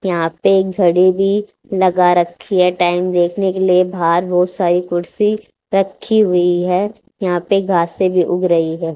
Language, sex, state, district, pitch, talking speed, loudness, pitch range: Hindi, female, Haryana, Charkhi Dadri, 180 Hz, 175 wpm, -15 LUFS, 175-195 Hz